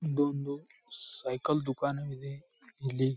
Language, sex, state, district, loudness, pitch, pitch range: Kannada, male, Karnataka, Bijapur, -34 LUFS, 140 Hz, 135-150 Hz